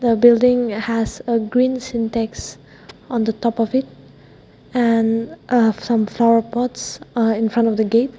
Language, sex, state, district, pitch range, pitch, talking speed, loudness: English, female, Nagaland, Dimapur, 225-245 Hz, 230 Hz, 160 wpm, -18 LUFS